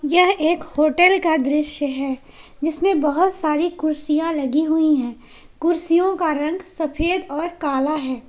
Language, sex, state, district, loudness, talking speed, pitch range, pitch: Hindi, female, Jharkhand, Palamu, -19 LUFS, 145 wpm, 295-340 Hz, 310 Hz